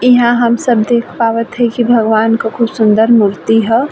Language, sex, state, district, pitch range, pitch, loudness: Bhojpuri, female, Uttar Pradesh, Ghazipur, 225-240 Hz, 230 Hz, -11 LUFS